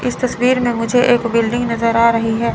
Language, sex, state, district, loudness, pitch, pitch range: Hindi, female, Chandigarh, Chandigarh, -15 LUFS, 235 Hz, 230-245 Hz